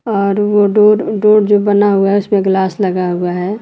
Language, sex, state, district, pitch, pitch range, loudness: Hindi, female, Uttar Pradesh, Lucknow, 205 Hz, 190-210 Hz, -12 LUFS